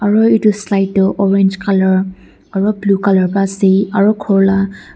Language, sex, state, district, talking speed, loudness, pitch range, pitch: Nagamese, female, Nagaland, Dimapur, 170 wpm, -13 LUFS, 195-205 Hz, 195 Hz